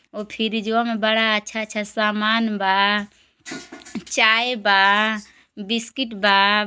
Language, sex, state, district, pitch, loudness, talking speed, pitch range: Bhojpuri, female, Uttar Pradesh, Gorakhpur, 220 Hz, -19 LUFS, 110 wpm, 205-225 Hz